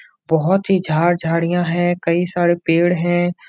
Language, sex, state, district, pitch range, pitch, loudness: Hindi, male, Uttar Pradesh, Etah, 165-175 Hz, 175 Hz, -17 LUFS